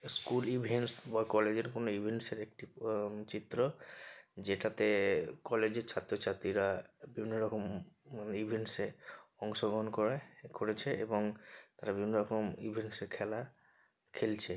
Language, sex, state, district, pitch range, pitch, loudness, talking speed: Bengali, male, West Bengal, North 24 Parganas, 105-115 Hz, 110 Hz, -37 LUFS, 120 wpm